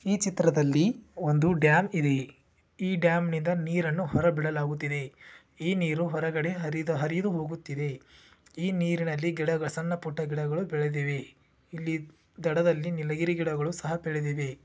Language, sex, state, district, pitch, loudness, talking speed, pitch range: Kannada, male, Karnataka, Shimoga, 160 Hz, -28 LUFS, 120 wpm, 150-170 Hz